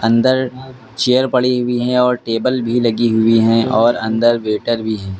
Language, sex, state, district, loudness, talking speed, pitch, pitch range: Hindi, male, Uttar Pradesh, Lucknow, -15 LUFS, 185 wpm, 120 Hz, 115-125 Hz